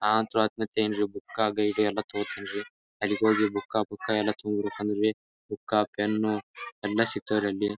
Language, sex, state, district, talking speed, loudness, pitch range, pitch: Kannada, male, Karnataka, Bijapur, 155 wpm, -28 LUFS, 105-110 Hz, 105 Hz